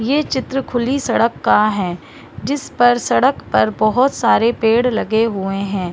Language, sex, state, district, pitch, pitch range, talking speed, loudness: Hindi, female, Chhattisgarh, Bilaspur, 230 Hz, 210-255 Hz, 160 wpm, -16 LUFS